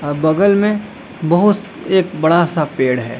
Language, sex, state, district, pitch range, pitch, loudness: Hindi, male, Bihar, Gaya, 150-200 Hz, 170 Hz, -15 LUFS